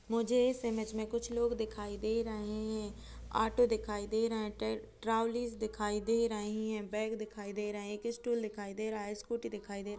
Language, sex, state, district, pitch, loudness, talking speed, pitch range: Hindi, female, Uttar Pradesh, Jalaun, 220 Hz, -36 LUFS, 215 wpm, 210-230 Hz